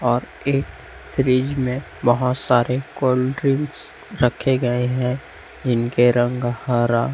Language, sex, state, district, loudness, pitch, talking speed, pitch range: Hindi, male, Chhattisgarh, Raipur, -20 LUFS, 125 Hz, 120 wpm, 120-130 Hz